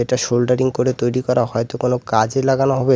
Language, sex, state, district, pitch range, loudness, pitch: Bengali, male, West Bengal, Alipurduar, 120-130 Hz, -18 LUFS, 125 Hz